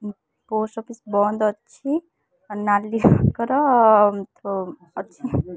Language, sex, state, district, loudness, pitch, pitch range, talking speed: Odia, female, Odisha, Khordha, -20 LUFS, 210 Hz, 205-235 Hz, 110 wpm